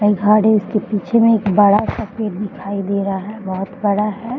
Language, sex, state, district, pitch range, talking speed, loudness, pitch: Hindi, female, Bihar, Bhagalpur, 200-215 Hz, 230 wpm, -17 LUFS, 210 Hz